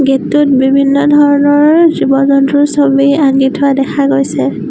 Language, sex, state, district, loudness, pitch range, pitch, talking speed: Assamese, female, Assam, Sonitpur, -9 LUFS, 275-290 Hz, 280 Hz, 130 wpm